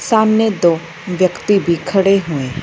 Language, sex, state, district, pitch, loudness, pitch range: Hindi, female, Punjab, Fazilka, 185 Hz, -15 LUFS, 170-205 Hz